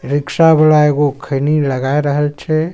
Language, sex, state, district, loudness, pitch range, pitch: Maithili, male, Bihar, Supaul, -14 LUFS, 145-155 Hz, 145 Hz